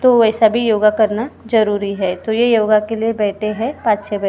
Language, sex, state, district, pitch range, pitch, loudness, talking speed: Hindi, female, Maharashtra, Gondia, 210-225 Hz, 215 Hz, -16 LUFS, 225 wpm